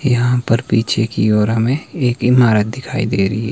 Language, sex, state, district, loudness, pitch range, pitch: Hindi, male, Himachal Pradesh, Shimla, -16 LUFS, 110-125 Hz, 115 Hz